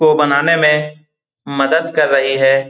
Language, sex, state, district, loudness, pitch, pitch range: Hindi, male, Bihar, Saran, -13 LUFS, 150 Hz, 135-155 Hz